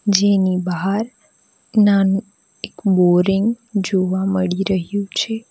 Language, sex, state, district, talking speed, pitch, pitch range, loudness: Gujarati, female, Gujarat, Valsad, 100 wpm, 195 Hz, 185-205 Hz, -18 LUFS